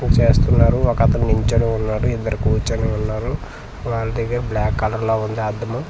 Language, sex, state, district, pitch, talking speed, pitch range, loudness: Telugu, male, Andhra Pradesh, Manyam, 115 Hz, 140 wpm, 110-115 Hz, -19 LUFS